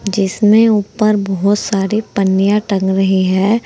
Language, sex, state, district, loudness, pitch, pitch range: Hindi, female, Uttar Pradesh, Saharanpur, -14 LUFS, 200 Hz, 195-210 Hz